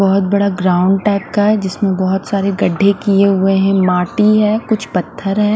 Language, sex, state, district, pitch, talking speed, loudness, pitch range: Hindi, male, Punjab, Fazilka, 195 Hz, 195 wpm, -14 LUFS, 190-205 Hz